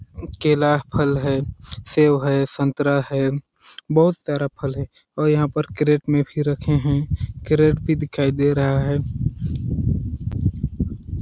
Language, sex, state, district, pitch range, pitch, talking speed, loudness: Hindi, male, Chhattisgarh, Sarguja, 135-150 Hz, 140 Hz, 135 wpm, -21 LUFS